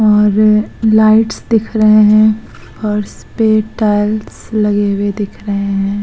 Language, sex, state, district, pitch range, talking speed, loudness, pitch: Hindi, female, Uttar Pradesh, Hamirpur, 205-215 Hz, 130 wpm, -12 LUFS, 215 Hz